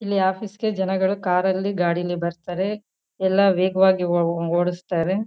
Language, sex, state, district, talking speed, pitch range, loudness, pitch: Kannada, female, Karnataka, Chamarajanagar, 125 wpm, 175-195 Hz, -22 LUFS, 190 Hz